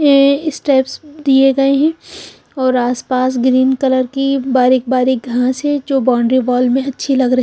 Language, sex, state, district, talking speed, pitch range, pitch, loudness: Hindi, female, Punjab, Fazilka, 185 wpm, 255-275 Hz, 260 Hz, -14 LUFS